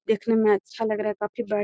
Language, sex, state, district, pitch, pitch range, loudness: Magahi, female, Bihar, Gaya, 215 Hz, 210-225 Hz, -24 LUFS